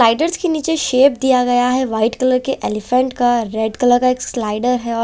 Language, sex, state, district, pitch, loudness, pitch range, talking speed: Hindi, female, Chandigarh, Chandigarh, 250 Hz, -16 LUFS, 235-260 Hz, 225 wpm